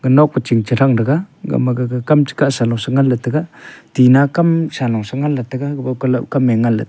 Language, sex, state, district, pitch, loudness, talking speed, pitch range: Wancho, male, Arunachal Pradesh, Longding, 130 Hz, -16 LUFS, 120 wpm, 125-145 Hz